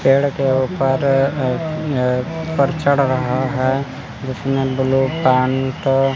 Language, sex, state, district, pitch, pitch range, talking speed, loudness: Hindi, male, Chandigarh, Chandigarh, 135 Hz, 130-140 Hz, 125 wpm, -18 LUFS